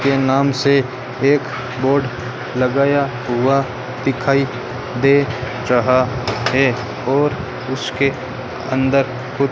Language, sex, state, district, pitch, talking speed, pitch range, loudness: Hindi, male, Rajasthan, Bikaner, 130 Hz, 100 wpm, 125-135 Hz, -18 LUFS